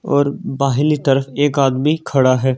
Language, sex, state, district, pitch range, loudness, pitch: Hindi, male, Delhi, New Delhi, 135-145 Hz, -16 LUFS, 140 Hz